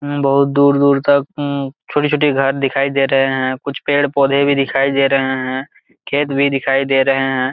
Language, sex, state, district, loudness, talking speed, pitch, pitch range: Hindi, male, Jharkhand, Jamtara, -15 LUFS, 200 wpm, 140 Hz, 135-140 Hz